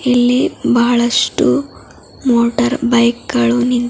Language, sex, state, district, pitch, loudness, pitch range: Kannada, female, Karnataka, Bidar, 240 Hz, -14 LUFS, 235-245 Hz